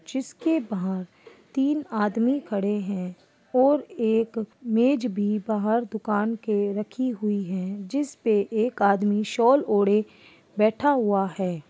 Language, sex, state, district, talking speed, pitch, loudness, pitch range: Hindi, female, Uttar Pradesh, Ghazipur, 125 wpm, 215 Hz, -25 LUFS, 200-245 Hz